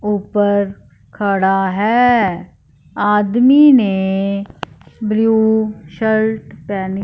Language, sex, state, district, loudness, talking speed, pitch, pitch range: Hindi, female, Punjab, Fazilka, -15 LUFS, 70 wpm, 205 Hz, 195-220 Hz